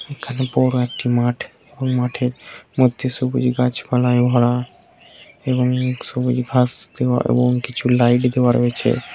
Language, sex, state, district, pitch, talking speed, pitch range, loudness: Bengali, male, West Bengal, Kolkata, 125 Hz, 125 wpm, 125-130 Hz, -19 LUFS